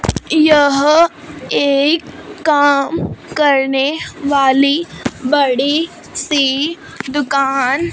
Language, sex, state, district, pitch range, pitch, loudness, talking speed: Hindi, female, Punjab, Fazilka, 275-310 Hz, 290 Hz, -14 LUFS, 55 wpm